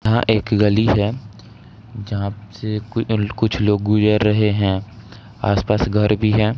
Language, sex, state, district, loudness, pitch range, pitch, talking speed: Hindi, male, Bihar, Samastipur, -18 LUFS, 105-110 Hz, 105 Hz, 135 wpm